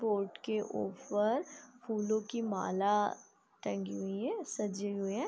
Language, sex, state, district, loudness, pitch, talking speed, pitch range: Hindi, female, Bihar, East Champaran, -36 LUFS, 210 Hz, 150 wpm, 200-225 Hz